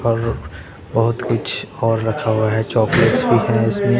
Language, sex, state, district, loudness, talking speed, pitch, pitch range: Hindi, male, Punjab, Pathankot, -18 LUFS, 165 wpm, 115 Hz, 110-115 Hz